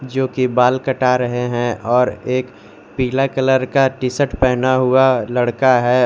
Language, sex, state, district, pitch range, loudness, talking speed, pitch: Hindi, male, Jharkhand, Garhwa, 125-130 Hz, -16 LUFS, 160 wpm, 130 Hz